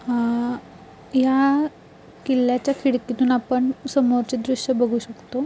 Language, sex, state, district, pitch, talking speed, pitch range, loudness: Marathi, female, Maharashtra, Pune, 255 Hz, 100 wpm, 245-265 Hz, -21 LUFS